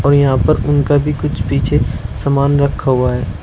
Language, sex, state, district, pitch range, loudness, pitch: Hindi, male, Uttar Pradesh, Shamli, 125-145 Hz, -15 LUFS, 140 Hz